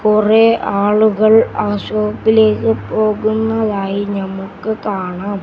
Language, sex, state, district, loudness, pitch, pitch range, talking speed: Malayalam, male, Kerala, Kasaragod, -15 LUFS, 210 Hz, 200-220 Hz, 75 wpm